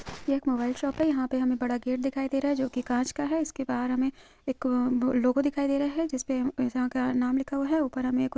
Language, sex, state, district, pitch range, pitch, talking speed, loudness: Hindi, female, Jharkhand, Jamtara, 255-280 Hz, 260 Hz, 280 wpm, -28 LUFS